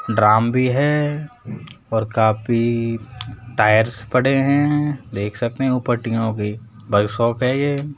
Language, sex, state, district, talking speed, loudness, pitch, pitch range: Hindi, male, Rajasthan, Jaipur, 130 wpm, -19 LUFS, 120 Hz, 110-135 Hz